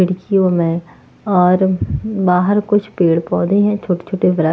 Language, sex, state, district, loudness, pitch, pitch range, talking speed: Hindi, female, Haryana, Jhajjar, -15 LUFS, 185 Hz, 175-200 Hz, 130 wpm